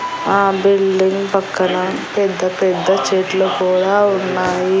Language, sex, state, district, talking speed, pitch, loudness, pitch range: Telugu, female, Andhra Pradesh, Annamaya, 100 wpm, 190 Hz, -16 LUFS, 185-195 Hz